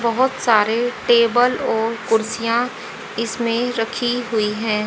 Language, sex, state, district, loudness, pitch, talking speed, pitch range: Hindi, female, Haryana, Charkhi Dadri, -19 LUFS, 230 Hz, 110 wpm, 225-240 Hz